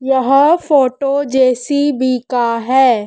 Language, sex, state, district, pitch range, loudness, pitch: Hindi, female, Madhya Pradesh, Dhar, 250-280 Hz, -14 LUFS, 265 Hz